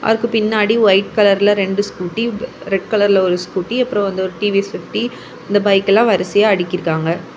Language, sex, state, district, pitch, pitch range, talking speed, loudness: Tamil, female, Tamil Nadu, Kanyakumari, 205 Hz, 190-215 Hz, 185 wpm, -16 LUFS